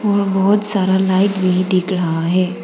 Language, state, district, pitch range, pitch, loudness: Hindi, Arunachal Pradesh, Papum Pare, 185-200 Hz, 190 Hz, -15 LUFS